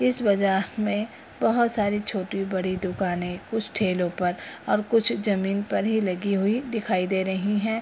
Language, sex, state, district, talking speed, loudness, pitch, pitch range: Hindi, female, Bihar, Purnia, 160 wpm, -25 LUFS, 200 Hz, 190-220 Hz